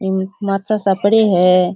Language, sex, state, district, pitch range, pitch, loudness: Rajasthani, male, Rajasthan, Churu, 190-205 Hz, 195 Hz, -15 LUFS